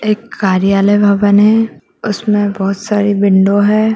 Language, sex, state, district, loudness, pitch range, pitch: Hindi, female, Bihar, Purnia, -12 LUFS, 195-210 Hz, 205 Hz